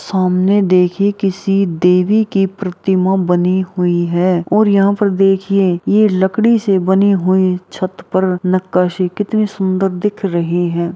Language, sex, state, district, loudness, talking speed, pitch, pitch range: Hindi, female, Bihar, Araria, -14 LUFS, 140 wpm, 190 Hz, 180-200 Hz